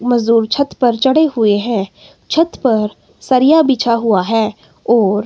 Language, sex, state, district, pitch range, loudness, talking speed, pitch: Hindi, female, Himachal Pradesh, Shimla, 215-260 Hz, -14 LUFS, 150 wpm, 230 Hz